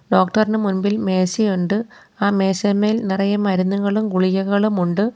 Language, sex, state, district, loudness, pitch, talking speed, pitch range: Malayalam, female, Kerala, Kollam, -19 LUFS, 200 Hz, 130 wpm, 190-210 Hz